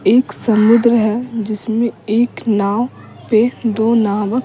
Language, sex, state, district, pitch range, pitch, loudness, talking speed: Hindi, female, Bihar, Patna, 215-235 Hz, 225 Hz, -15 LUFS, 135 wpm